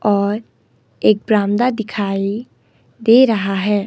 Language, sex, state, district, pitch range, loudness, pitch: Hindi, female, Himachal Pradesh, Shimla, 200-225 Hz, -16 LUFS, 210 Hz